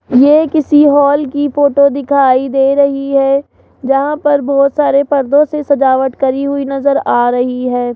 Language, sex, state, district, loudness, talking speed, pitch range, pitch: Hindi, female, Rajasthan, Jaipur, -11 LUFS, 165 wpm, 270-285 Hz, 280 Hz